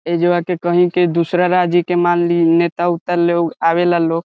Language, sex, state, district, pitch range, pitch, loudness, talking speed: Bhojpuri, male, Bihar, Saran, 170-175 Hz, 175 Hz, -15 LUFS, 200 wpm